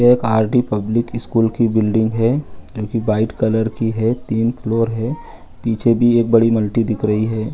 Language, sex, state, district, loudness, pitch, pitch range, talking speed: Hindi, male, Bihar, Gaya, -17 LUFS, 115 Hz, 110-115 Hz, 200 wpm